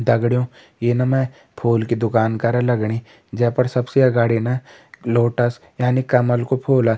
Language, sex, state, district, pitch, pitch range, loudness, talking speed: Hindi, male, Uttarakhand, Tehri Garhwal, 120 Hz, 115-125 Hz, -19 LUFS, 155 wpm